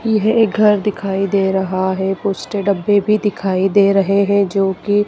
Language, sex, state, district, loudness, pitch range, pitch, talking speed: Hindi, female, Madhya Pradesh, Dhar, -16 LUFS, 195-205 Hz, 200 Hz, 190 wpm